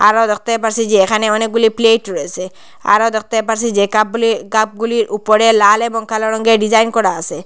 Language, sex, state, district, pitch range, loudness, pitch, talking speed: Bengali, female, Assam, Hailakandi, 215-225 Hz, -14 LUFS, 220 Hz, 195 wpm